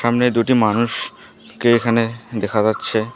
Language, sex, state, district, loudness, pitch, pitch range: Bengali, female, West Bengal, Alipurduar, -18 LUFS, 115 Hz, 110-120 Hz